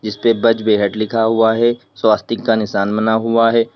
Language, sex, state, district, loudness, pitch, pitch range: Hindi, male, Uttar Pradesh, Lalitpur, -15 LUFS, 110 Hz, 110-115 Hz